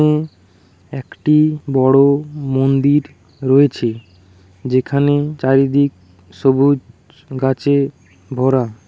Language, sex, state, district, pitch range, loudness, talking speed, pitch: Bengali, male, West Bengal, Jhargram, 115-140 Hz, -16 LUFS, 60 wpm, 135 Hz